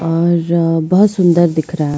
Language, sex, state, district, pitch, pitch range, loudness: Hindi, female, Goa, North and South Goa, 170 Hz, 165-175 Hz, -13 LUFS